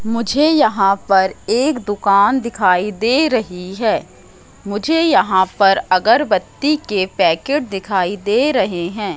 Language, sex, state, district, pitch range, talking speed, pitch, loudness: Hindi, female, Madhya Pradesh, Katni, 190-255 Hz, 125 wpm, 205 Hz, -16 LUFS